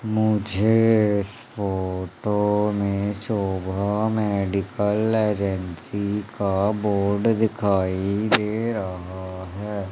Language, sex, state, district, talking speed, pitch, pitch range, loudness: Hindi, male, Madhya Pradesh, Umaria, 80 wpm, 105 Hz, 95-105 Hz, -23 LUFS